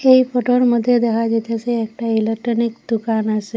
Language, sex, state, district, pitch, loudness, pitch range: Bengali, female, Assam, Hailakandi, 230 Hz, -18 LUFS, 225-245 Hz